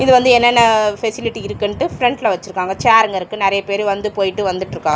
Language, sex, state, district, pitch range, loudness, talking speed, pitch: Tamil, male, Tamil Nadu, Chennai, 190-225 Hz, -15 LUFS, 170 wpm, 205 Hz